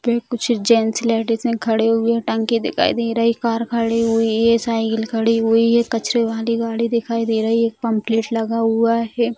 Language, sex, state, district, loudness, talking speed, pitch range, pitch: Hindi, female, Bihar, Sitamarhi, -18 LUFS, 205 wpm, 225-230 Hz, 230 Hz